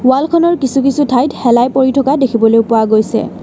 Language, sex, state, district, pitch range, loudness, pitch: Assamese, female, Assam, Kamrup Metropolitan, 230-275 Hz, -12 LUFS, 260 Hz